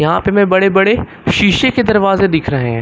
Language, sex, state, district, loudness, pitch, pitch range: Hindi, male, Uttar Pradesh, Lucknow, -12 LUFS, 195 Hz, 165-205 Hz